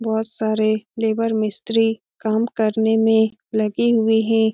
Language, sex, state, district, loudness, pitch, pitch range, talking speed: Hindi, female, Bihar, Lakhisarai, -20 LUFS, 220 Hz, 220-225 Hz, 145 wpm